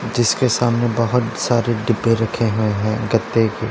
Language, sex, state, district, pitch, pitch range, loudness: Hindi, male, Punjab, Pathankot, 115 Hz, 110-120 Hz, -18 LUFS